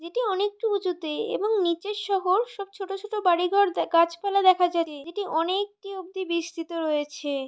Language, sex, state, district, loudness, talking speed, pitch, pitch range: Bengali, female, West Bengal, North 24 Parganas, -25 LUFS, 170 wpm, 375 Hz, 335-405 Hz